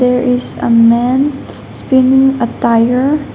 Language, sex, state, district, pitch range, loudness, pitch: English, female, Nagaland, Dimapur, 240-265 Hz, -11 LUFS, 250 Hz